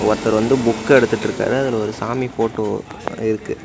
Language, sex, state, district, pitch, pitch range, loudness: Tamil, male, Tamil Nadu, Namakkal, 110 Hz, 110-125 Hz, -18 LUFS